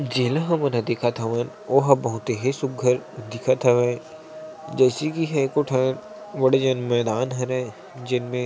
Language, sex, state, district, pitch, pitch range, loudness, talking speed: Chhattisgarhi, male, Chhattisgarh, Sarguja, 130 Hz, 125-140 Hz, -22 LUFS, 170 wpm